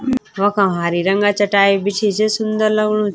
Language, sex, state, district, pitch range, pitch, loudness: Garhwali, female, Uttarakhand, Tehri Garhwal, 200-215 Hz, 205 Hz, -16 LUFS